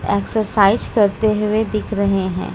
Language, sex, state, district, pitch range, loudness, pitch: Hindi, female, Uttar Pradesh, Lucknow, 200-215 Hz, -17 LUFS, 210 Hz